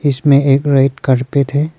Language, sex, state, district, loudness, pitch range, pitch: Hindi, male, Arunachal Pradesh, Papum Pare, -13 LUFS, 135-145 Hz, 140 Hz